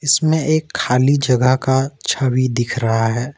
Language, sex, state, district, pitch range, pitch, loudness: Hindi, male, Jharkhand, Ranchi, 125-145 Hz, 130 Hz, -17 LUFS